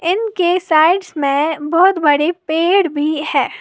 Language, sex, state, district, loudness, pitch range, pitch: Hindi, female, Uttar Pradesh, Lalitpur, -15 LUFS, 300-360 Hz, 320 Hz